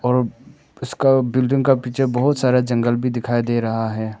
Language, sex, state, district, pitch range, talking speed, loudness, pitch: Hindi, male, Arunachal Pradesh, Papum Pare, 120-130 Hz, 185 wpm, -19 LUFS, 125 Hz